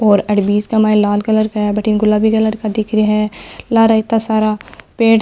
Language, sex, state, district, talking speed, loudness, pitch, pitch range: Marwari, female, Rajasthan, Nagaur, 240 wpm, -14 LUFS, 215 Hz, 210-220 Hz